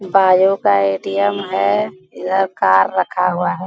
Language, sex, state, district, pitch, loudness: Hindi, female, Bihar, Bhagalpur, 185 Hz, -16 LUFS